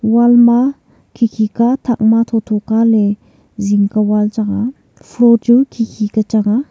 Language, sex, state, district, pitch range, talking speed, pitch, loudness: Wancho, female, Arunachal Pradesh, Longding, 215-235 Hz, 180 wpm, 225 Hz, -13 LUFS